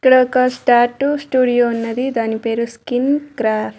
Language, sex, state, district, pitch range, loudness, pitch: Telugu, female, Andhra Pradesh, Sri Satya Sai, 230-260 Hz, -17 LUFS, 245 Hz